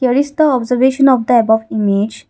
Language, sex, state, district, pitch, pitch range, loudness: English, female, Assam, Kamrup Metropolitan, 250 Hz, 220-265 Hz, -13 LUFS